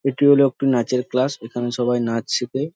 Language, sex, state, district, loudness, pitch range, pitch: Bengali, male, West Bengal, Jhargram, -20 LUFS, 120-135 Hz, 125 Hz